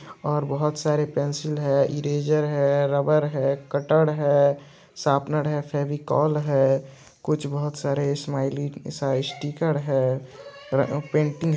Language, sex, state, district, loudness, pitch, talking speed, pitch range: Hindi, male, Andhra Pradesh, Chittoor, -24 LUFS, 145 Hz, 125 wpm, 140-150 Hz